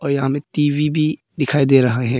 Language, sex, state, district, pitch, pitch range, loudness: Hindi, female, Arunachal Pradesh, Papum Pare, 140 Hz, 135-150 Hz, -18 LUFS